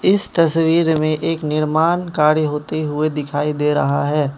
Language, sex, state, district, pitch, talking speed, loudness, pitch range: Hindi, male, Manipur, Imphal West, 155 Hz, 165 wpm, -17 LUFS, 150-165 Hz